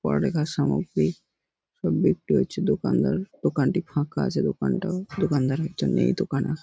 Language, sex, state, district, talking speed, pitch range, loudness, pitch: Bengali, male, West Bengal, North 24 Parganas, 135 wpm, 145-190 Hz, -25 LUFS, 160 Hz